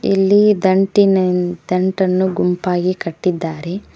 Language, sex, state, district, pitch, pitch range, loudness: Kannada, female, Karnataka, Koppal, 185 Hz, 180-195 Hz, -16 LUFS